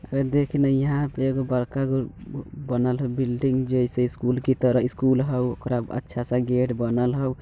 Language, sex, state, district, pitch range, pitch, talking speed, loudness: Bajjika, male, Bihar, Vaishali, 125-135 Hz, 130 Hz, 185 wpm, -24 LUFS